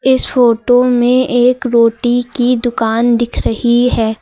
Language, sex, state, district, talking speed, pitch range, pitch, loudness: Hindi, female, Uttar Pradesh, Lucknow, 140 wpm, 235-250 Hz, 245 Hz, -12 LUFS